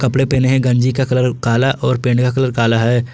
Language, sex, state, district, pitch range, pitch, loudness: Hindi, male, Jharkhand, Garhwa, 120-130 Hz, 125 Hz, -15 LUFS